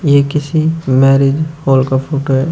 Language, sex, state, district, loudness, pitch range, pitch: Hindi, male, Uttar Pradesh, Shamli, -13 LUFS, 135-155 Hz, 140 Hz